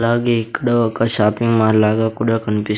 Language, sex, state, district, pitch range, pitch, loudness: Telugu, male, Andhra Pradesh, Sri Satya Sai, 110-115 Hz, 115 Hz, -16 LUFS